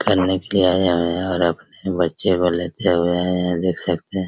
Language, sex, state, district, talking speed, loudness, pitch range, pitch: Hindi, male, Bihar, Araria, 240 wpm, -19 LUFS, 85-95 Hz, 90 Hz